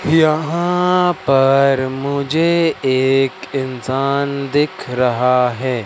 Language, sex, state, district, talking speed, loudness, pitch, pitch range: Hindi, male, Madhya Pradesh, Katni, 80 wpm, -16 LUFS, 140 Hz, 130-155 Hz